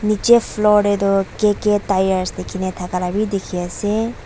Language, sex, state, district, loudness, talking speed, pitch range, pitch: Nagamese, female, Nagaland, Dimapur, -18 LUFS, 170 wpm, 185-210 Hz, 205 Hz